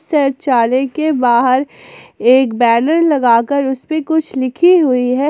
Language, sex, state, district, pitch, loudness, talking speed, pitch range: Hindi, female, Jharkhand, Ranchi, 270 Hz, -13 LUFS, 135 wpm, 250-315 Hz